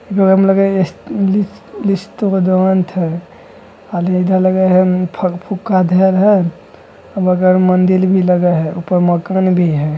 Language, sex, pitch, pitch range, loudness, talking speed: Bajjika, male, 185 Hz, 180-190 Hz, -14 LUFS, 150 wpm